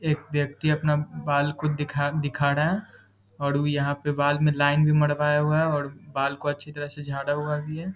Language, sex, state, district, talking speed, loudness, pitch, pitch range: Hindi, male, Bihar, Muzaffarpur, 220 wpm, -25 LUFS, 145 Hz, 145-150 Hz